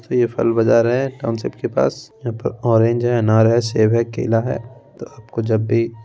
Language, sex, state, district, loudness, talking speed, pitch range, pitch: Hindi, male, Bihar, Begusarai, -18 LUFS, 170 wpm, 115-120 Hz, 115 Hz